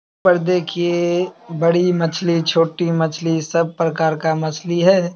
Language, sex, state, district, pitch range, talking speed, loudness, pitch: Hindi, male, Bihar, Samastipur, 165-175 Hz, 130 wpm, -18 LUFS, 170 Hz